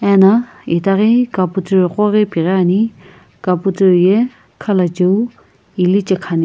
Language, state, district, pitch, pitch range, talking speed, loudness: Sumi, Nagaland, Kohima, 190 Hz, 180-210 Hz, 100 wpm, -14 LUFS